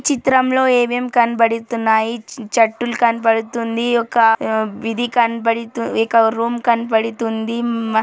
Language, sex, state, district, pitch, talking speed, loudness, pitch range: Telugu, female, Andhra Pradesh, Anantapur, 230 Hz, 90 wpm, -17 LUFS, 225-240 Hz